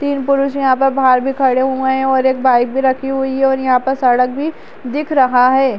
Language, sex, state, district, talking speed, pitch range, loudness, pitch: Kumaoni, female, Uttarakhand, Uttarkashi, 250 wpm, 260-270 Hz, -14 LUFS, 265 Hz